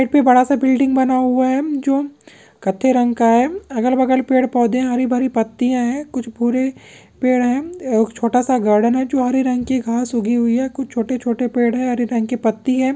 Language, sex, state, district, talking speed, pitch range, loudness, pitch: Hindi, male, Chhattisgarh, Raigarh, 220 wpm, 240-260 Hz, -17 LUFS, 255 Hz